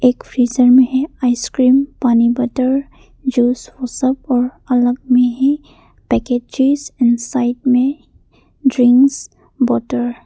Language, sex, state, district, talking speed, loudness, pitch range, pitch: Hindi, female, Arunachal Pradesh, Papum Pare, 125 wpm, -15 LUFS, 245-265 Hz, 250 Hz